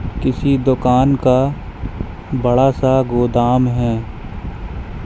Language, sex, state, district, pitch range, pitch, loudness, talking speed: Hindi, male, Madhya Pradesh, Katni, 120-130 Hz, 125 Hz, -16 LUFS, 85 wpm